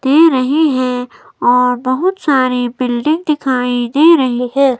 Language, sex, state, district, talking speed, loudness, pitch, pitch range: Hindi, female, Himachal Pradesh, Shimla, 135 wpm, -13 LUFS, 255 Hz, 250-300 Hz